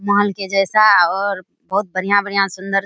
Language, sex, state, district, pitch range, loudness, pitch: Hindi, female, Bihar, Kishanganj, 195-205 Hz, -16 LUFS, 195 Hz